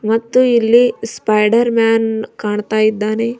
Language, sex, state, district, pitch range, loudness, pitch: Kannada, female, Karnataka, Bidar, 215-235 Hz, -14 LUFS, 225 Hz